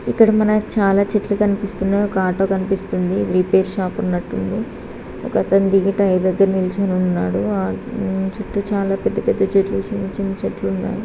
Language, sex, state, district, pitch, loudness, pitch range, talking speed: Telugu, female, Andhra Pradesh, Srikakulam, 195 Hz, -19 LUFS, 185-200 Hz, 145 wpm